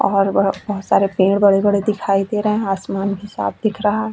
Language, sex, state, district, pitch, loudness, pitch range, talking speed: Hindi, female, Chhattisgarh, Bastar, 200 Hz, -18 LUFS, 195-210 Hz, 230 wpm